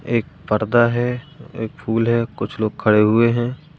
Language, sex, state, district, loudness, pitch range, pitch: Hindi, male, Madhya Pradesh, Katni, -19 LUFS, 110-125 Hz, 115 Hz